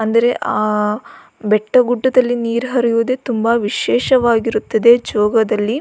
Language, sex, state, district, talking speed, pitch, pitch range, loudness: Kannada, female, Karnataka, Belgaum, 95 wpm, 230 Hz, 220-245 Hz, -15 LUFS